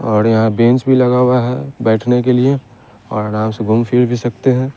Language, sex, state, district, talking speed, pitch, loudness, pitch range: Hindi, male, Chandigarh, Chandigarh, 225 wpm, 120 Hz, -14 LUFS, 110-125 Hz